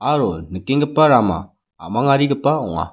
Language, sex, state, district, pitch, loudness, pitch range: Garo, male, Meghalaya, West Garo Hills, 140 Hz, -17 LUFS, 90-145 Hz